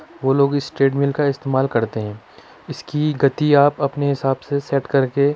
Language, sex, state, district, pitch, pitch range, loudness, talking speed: Hindi, male, Uttar Pradesh, Budaun, 140 Hz, 135-145 Hz, -19 LUFS, 200 wpm